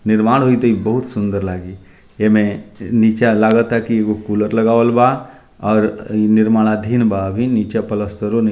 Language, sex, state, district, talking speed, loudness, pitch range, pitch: Bhojpuri, male, Bihar, Muzaffarpur, 170 wpm, -15 LUFS, 105-115 Hz, 110 Hz